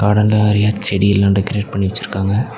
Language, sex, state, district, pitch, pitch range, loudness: Tamil, male, Tamil Nadu, Nilgiris, 105 Hz, 100-105 Hz, -15 LUFS